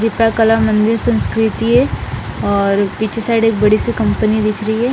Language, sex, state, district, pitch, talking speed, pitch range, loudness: Hindi, female, Bihar, Patna, 220 Hz, 195 wpm, 215-225 Hz, -14 LUFS